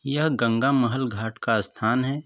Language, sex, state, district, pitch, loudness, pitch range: Hindi, male, Uttar Pradesh, Varanasi, 130 Hz, -24 LUFS, 115-140 Hz